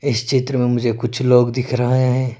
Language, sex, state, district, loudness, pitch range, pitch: Hindi, male, Arunachal Pradesh, Lower Dibang Valley, -17 LUFS, 120-130 Hz, 125 Hz